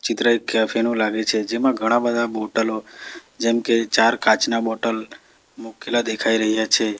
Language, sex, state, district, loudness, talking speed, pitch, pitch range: Gujarati, male, Gujarat, Valsad, -20 LUFS, 155 wpm, 115 Hz, 110-115 Hz